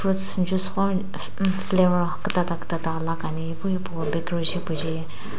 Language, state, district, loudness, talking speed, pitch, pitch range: Sumi, Nagaland, Dimapur, -25 LUFS, 110 wpm, 180 Hz, 165-190 Hz